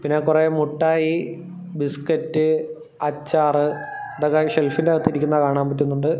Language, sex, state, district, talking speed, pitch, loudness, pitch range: Malayalam, male, Kerala, Thiruvananthapuram, 105 wpm, 155 Hz, -21 LUFS, 145-160 Hz